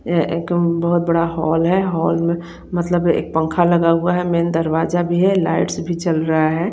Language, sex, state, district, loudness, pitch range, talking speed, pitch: Hindi, female, Chandigarh, Chandigarh, -18 LUFS, 165-175 Hz, 205 wpm, 170 Hz